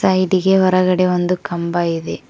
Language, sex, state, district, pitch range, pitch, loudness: Kannada, female, Karnataka, Koppal, 175-185 Hz, 185 Hz, -16 LUFS